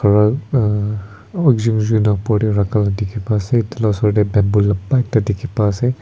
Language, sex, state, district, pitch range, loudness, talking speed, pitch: Nagamese, male, Nagaland, Kohima, 105-115 Hz, -17 LUFS, 230 wpm, 105 Hz